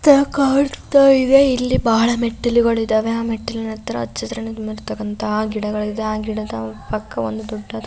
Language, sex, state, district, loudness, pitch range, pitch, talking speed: Kannada, female, Karnataka, Belgaum, -19 LUFS, 215-240 Hz, 220 Hz, 115 wpm